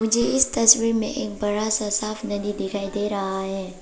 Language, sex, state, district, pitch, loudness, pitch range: Hindi, female, Arunachal Pradesh, Papum Pare, 210 Hz, -22 LUFS, 200-225 Hz